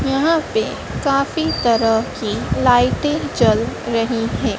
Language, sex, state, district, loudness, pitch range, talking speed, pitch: Hindi, female, Madhya Pradesh, Dhar, -18 LUFS, 230-300 Hz, 120 wpm, 260 Hz